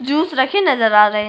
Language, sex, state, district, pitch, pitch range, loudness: Hindi, female, Chhattisgarh, Korba, 260 Hz, 210-300 Hz, -15 LUFS